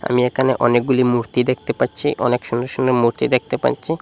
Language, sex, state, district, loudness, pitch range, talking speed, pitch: Bengali, male, Assam, Hailakandi, -18 LUFS, 120-130 Hz, 180 wpm, 125 Hz